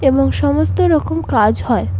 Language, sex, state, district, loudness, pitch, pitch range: Bengali, female, West Bengal, Kolkata, -15 LUFS, 95 Hz, 90-105 Hz